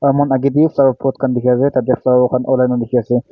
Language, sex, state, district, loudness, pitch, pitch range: Nagamese, male, Nagaland, Kohima, -15 LUFS, 130 Hz, 125-135 Hz